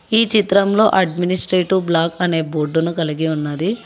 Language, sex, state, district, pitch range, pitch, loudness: Telugu, female, Telangana, Hyderabad, 160-200 Hz, 180 Hz, -17 LUFS